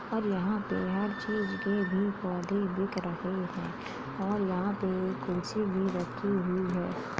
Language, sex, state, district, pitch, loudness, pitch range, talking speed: Hindi, male, Uttar Pradesh, Jalaun, 195 Hz, -32 LUFS, 185-200 Hz, 165 wpm